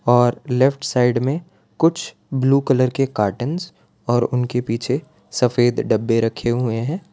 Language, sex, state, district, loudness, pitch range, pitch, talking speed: Hindi, male, Gujarat, Valsad, -20 LUFS, 120-140 Hz, 125 Hz, 145 wpm